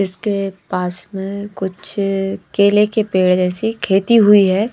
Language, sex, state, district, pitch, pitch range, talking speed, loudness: Hindi, female, Bihar, Patna, 195 Hz, 190-210 Hz, 140 wpm, -16 LUFS